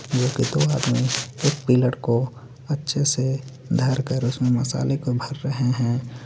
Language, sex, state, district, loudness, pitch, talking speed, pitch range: Hindi, male, Jharkhand, Garhwa, -23 LUFS, 130 Hz, 155 wpm, 125-135 Hz